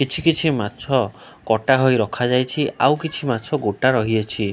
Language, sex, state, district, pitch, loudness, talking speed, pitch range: Odia, male, Odisha, Khordha, 130 Hz, -20 LUFS, 145 wpm, 110-145 Hz